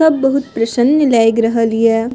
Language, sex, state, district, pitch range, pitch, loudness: Maithili, female, Bihar, Purnia, 230-275 Hz, 230 Hz, -13 LUFS